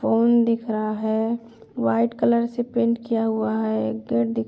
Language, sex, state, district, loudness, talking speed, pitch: Hindi, female, Uttar Pradesh, Budaun, -22 LUFS, 215 wpm, 220 Hz